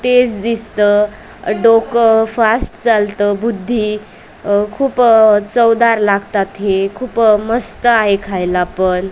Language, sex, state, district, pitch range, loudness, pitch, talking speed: Marathi, female, Maharashtra, Aurangabad, 205-230 Hz, -13 LUFS, 215 Hz, 110 wpm